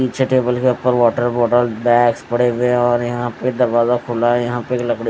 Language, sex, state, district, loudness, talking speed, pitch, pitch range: Hindi, male, Odisha, Nuapada, -16 LUFS, 235 wpm, 120 Hz, 120-125 Hz